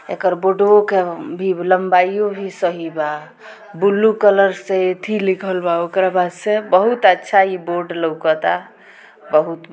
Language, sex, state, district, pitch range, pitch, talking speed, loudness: Bhojpuri, female, Bihar, Gopalganj, 175-195 Hz, 185 Hz, 135 wpm, -17 LUFS